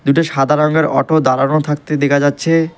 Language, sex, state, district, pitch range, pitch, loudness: Bengali, male, West Bengal, Alipurduar, 140-160 Hz, 150 Hz, -14 LUFS